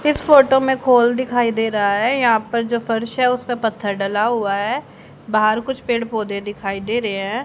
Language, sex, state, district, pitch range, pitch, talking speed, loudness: Hindi, female, Haryana, Charkhi Dadri, 210-245 Hz, 230 Hz, 210 wpm, -18 LUFS